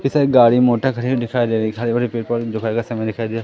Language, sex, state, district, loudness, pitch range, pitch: Hindi, male, Madhya Pradesh, Katni, -18 LUFS, 115-125 Hz, 120 Hz